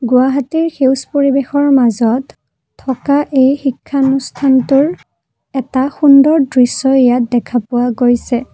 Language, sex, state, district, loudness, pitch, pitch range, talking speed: Assamese, female, Assam, Kamrup Metropolitan, -13 LUFS, 265 Hz, 250-280 Hz, 100 wpm